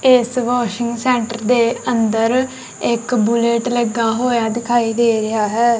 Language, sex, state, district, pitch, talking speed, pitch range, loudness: Punjabi, female, Punjab, Kapurthala, 235 Hz, 135 wpm, 230-245 Hz, -17 LUFS